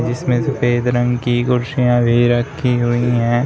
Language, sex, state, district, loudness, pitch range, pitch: Hindi, male, Uttar Pradesh, Shamli, -16 LUFS, 120-125 Hz, 120 Hz